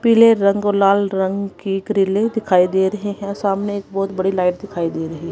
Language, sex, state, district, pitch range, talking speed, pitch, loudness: Hindi, female, Punjab, Kapurthala, 190-205 Hz, 200 wpm, 195 Hz, -18 LUFS